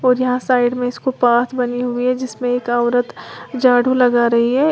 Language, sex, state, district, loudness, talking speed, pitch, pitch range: Hindi, female, Uttar Pradesh, Lalitpur, -16 LUFS, 205 wpm, 245 Hz, 245-255 Hz